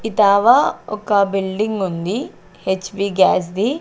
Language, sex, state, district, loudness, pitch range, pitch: Telugu, female, Andhra Pradesh, Sri Satya Sai, -17 LUFS, 190-215 Hz, 200 Hz